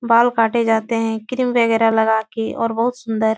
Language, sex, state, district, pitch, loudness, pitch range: Hindi, female, Uttar Pradesh, Etah, 225 Hz, -18 LUFS, 220-235 Hz